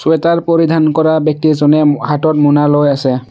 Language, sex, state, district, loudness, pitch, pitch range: Assamese, male, Assam, Sonitpur, -11 LUFS, 155 Hz, 145-160 Hz